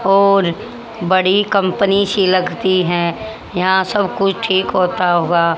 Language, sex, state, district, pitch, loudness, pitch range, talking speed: Hindi, female, Haryana, Jhajjar, 190 Hz, -15 LUFS, 180-200 Hz, 130 wpm